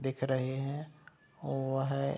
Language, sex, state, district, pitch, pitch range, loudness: Hindi, male, Bihar, Saharsa, 135 Hz, 135-140 Hz, -35 LUFS